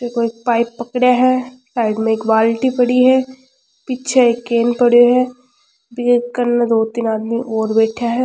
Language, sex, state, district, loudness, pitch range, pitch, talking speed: Rajasthani, female, Rajasthan, Churu, -15 LUFS, 230-250 Hz, 240 Hz, 165 wpm